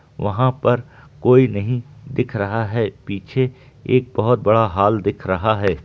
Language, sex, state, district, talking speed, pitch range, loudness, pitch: Hindi, male, Bihar, Gaya, 155 wpm, 105-130 Hz, -19 LUFS, 120 Hz